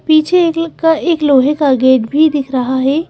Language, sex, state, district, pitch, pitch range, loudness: Hindi, female, Madhya Pradesh, Bhopal, 300 Hz, 265-325 Hz, -12 LUFS